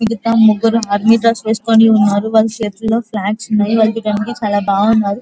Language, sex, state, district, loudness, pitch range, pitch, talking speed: Telugu, female, Andhra Pradesh, Guntur, -13 LUFS, 210-225 Hz, 220 Hz, 160 wpm